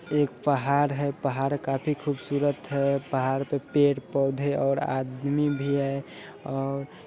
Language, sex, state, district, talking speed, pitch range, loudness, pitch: Hindi, male, Bihar, Sitamarhi, 145 wpm, 135-145 Hz, -27 LUFS, 140 Hz